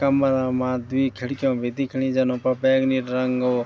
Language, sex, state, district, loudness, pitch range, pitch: Garhwali, male, Uttarakhand, Tehri Garhwal, -22 LUFS, 125-130 Hz, 130 Hz